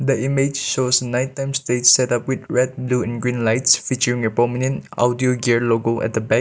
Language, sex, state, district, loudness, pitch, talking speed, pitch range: English, male, Nagaland, Kohima, -19 LUFS, 125 Hz, 205 wpm, 120-130 Hz